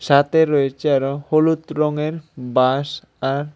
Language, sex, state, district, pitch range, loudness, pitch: Bengali, male, Tripura, West Tripura, 140-155 Hz, -19 LUFS, 145 Hz